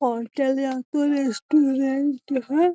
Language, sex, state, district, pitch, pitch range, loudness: Magahi, female, Bihar, Gaya, 270 Hz, 260-290 Hz, -23 LUFS